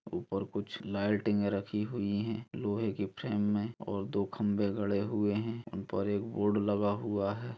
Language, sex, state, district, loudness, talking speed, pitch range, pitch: Hindi, male, Chhattisgarh, Kabirdham, -33 LUFS, 180 wpm, 100-110 Hz, 105 Hz